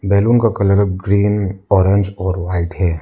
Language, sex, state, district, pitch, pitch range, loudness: Hindi, male, Arunachal Pradesh, Lower Dibang Valley, 100 Hz, 95-100 Hz, -16 LUFS